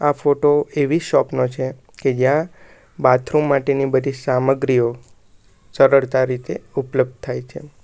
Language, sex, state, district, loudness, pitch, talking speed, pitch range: Gujarati, male, Gujarat, Valsad, -19 LUFS, 130 Hz, 130 wpm, 125-145 Hz